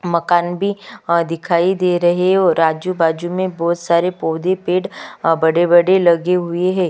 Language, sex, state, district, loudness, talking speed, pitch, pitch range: Hindi, female, Chhattisgarh, Kabirdham, -16 LUFS, 165 wpm, 175 Hz, 170-185 Hz